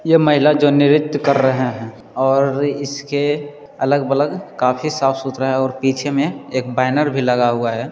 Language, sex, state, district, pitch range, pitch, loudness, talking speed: Hindi, male, Bihar, Jamui, 130-145 Hz, 140 Hz, -17 LUFS, 165 wpm